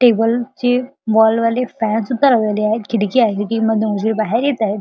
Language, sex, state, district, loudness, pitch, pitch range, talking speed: Marathi, male, Maharashtra, Chandrapur, -16 LUFS, 225 Hz, 215-245 Hz, 150 wpm